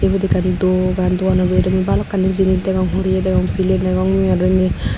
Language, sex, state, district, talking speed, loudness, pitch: Chakma, female, Tripura, Unakoti, 190 wpm, -16 LUFS, 180 Hz